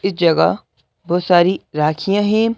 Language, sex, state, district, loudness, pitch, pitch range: Hindi, male, Madhya Pradesh, Bhopal, -16 LUFS, 180 Hz, 165-200 Hz